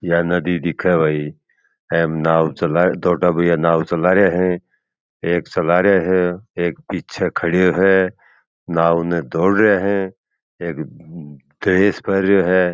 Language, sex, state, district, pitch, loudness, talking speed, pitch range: Marwari, male, Rajasthan, Churu, 90 Hz, -17 LUFS, 130 wpm, 85-95 Hz